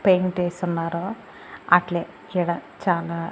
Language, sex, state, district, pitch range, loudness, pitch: Telugu, female, Andhra Pradesh, Annamaya, 170-180 Hz, -24 LUFS, 175 Hz